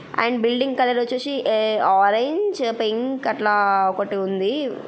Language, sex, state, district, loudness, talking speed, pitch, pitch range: Telugu, female, Andhra Pradesh, Guntur, -20 LUFS, 110 wpm, 230 Hz, 205-255 Hz